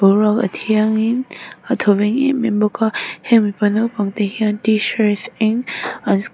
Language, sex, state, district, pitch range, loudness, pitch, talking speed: Mizo, female, Mizoram, Aizawl, 210-230 Hz, -17 LUFS, 220 Hz, 180 wpm